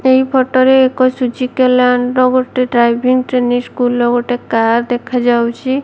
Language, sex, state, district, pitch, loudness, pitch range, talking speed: Odia, female, Odisha, Malkangiri, 250 Hz, -13 LUFS, 245-255 Hz, 155 wpm